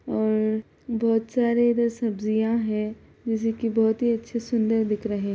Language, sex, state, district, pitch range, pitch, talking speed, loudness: Bhojpuri, female, Bihar, Saran, 220-235 Hz, 225 Hz, 155 wpm, -24 LUFS